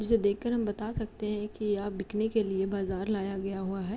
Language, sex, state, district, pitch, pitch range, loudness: Hindi, female, Uttar Pradesh, Jalaun, 205 Hz, 195-215 Hz, -32 LUFS